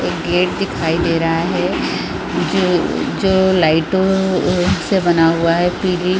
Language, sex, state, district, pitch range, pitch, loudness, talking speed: Hindi, female, Chhattisgarh, Raigarh, 165-190 Hz, 175 Hz, -16 LUFS, 145 wpm